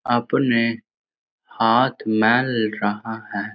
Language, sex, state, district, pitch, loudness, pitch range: Hindi, male, Bihar, Jahanabad, 110 Hz, -20 LUFS, 110-120 Hz